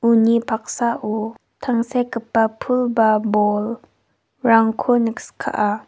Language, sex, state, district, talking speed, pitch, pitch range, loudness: Garo, female, Meghalaya, West Garo Hills, 70 wpm, 225 Hz, 215-240 Hz, -19 LUFS